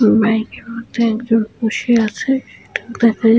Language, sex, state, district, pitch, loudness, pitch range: Bengali, female, West Bengal, Jhargram, 230 Hz, -17 LUFS, 220-235 Hz